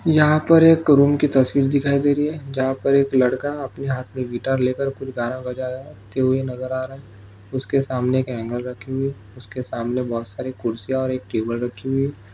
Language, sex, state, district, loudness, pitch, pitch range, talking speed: Hindi, male, Maharashtra, Solapur, -21 LUFS, 130 Hz, 125-140 Hz, 220 wpm